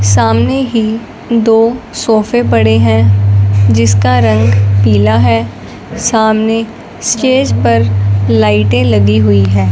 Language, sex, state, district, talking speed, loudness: Hindi, male, Punjab, Fazilka, 105 wpm, -10 LUFS